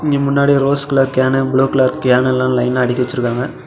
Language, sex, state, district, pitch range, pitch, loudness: Tamil, male, Tamil Nadu, Namakkal, 125-140 Hz, 130 Hz, -15 LUFS